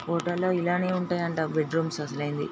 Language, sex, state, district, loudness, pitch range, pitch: Telugu, female, Andhra Pradesh, Srikakulam, -28 LUFS, 155-175 Hz, 170 Hz